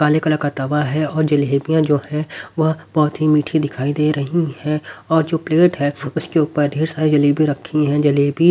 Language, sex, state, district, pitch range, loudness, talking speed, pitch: Hindi, male, Haryana, Rohtak, 145-155 Hz, -18 LUFS, 205 wpm, 150 Hz